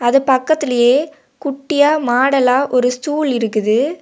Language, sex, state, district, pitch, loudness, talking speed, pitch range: Tamil, female, Tamil Nadu, Kanyakumari, 265 Hz, -15 LUFS, 105 wpm, 250-295 Hz